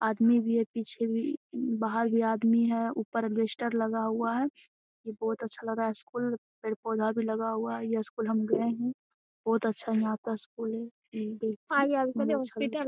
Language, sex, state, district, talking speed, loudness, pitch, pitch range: Hindi, female, Bihar, Jamui, 175 wpm, -30 LUFS, 230 Hz, 225-235 Hz